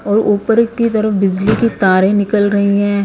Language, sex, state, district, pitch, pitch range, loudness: Hindi, female, Punjab, Kapurthala, 205 Hz, 200-220 Hz, -13 LUFS